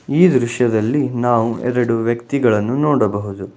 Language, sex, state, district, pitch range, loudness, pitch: Kannada, male, Karnataka, Bangalore, 115-135 Hz, -17 LUFS, 120 Hz